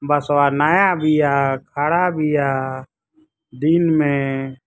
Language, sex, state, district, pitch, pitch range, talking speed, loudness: Bhojpuri, male, Uttar Pradesh, Ghazipur, 145 Hz, 135-160 Hz, 90 wpm, -18 LUFS